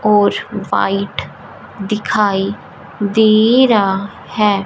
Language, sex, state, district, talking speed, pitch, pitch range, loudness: Hindi, female, Punjab, Fazilka, 75 wpm, 205 Hz, 195-215 Hz, -15 LUFS